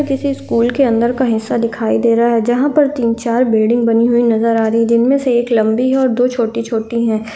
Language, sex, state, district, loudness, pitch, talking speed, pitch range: Hindi, female, Chhattisgarh, Korba, -14 LUFS, 235 Hz, 230 wpm, 230-250 Hz